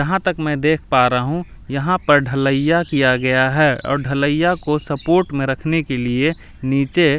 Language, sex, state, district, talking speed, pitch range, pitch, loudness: Hindi, male, Delhi, New Delhi, 185 wpm, 135-160 Hz, 145 Hz, -17 LUFS